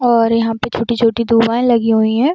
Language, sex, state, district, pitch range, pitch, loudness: Hindi, female, Jharkhand, Sahebganj, 225-235 Hz, 230 Hz, -14 LUFS